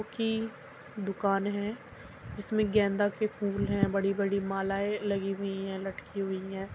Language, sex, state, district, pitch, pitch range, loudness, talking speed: Hindi, female, Uttar Pradesh, Muzaffarnagar, 200 Hz, 195-210 Hz, -31 LUFS, 140 wpm